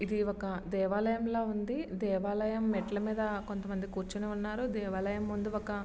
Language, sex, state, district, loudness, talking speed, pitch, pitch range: Telugu, male, Andhra Pradesh, Srikakulam, -34 LUFS, 145 wpm, 210 Hz, 200-215 Hz